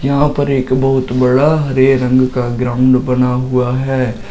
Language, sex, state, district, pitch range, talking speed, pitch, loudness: Hindi, male, Uttar Pradesh, Shamli, 125-135 Hz, 165 wpm, 130 Hz, -13 LUFS